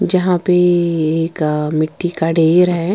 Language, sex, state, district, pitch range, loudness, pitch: Hindi, female, Bihar, Patna, 160-180 Hz, -15 LUFS, 170 Hz